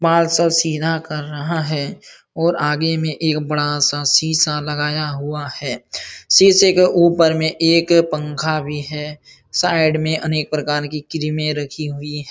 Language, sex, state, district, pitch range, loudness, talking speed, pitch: Hindi, male, Uttar Pradesh, Jalaun, 150-165 Hz, -17 LUFS, 155 wpm, 155 Hz